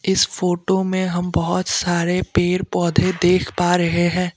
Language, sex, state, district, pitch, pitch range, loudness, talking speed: Hindi, male, Assam, Kamrup Metropolitan, 180 Hz, 175-185 Hz, -19 LUFS, 165 wpm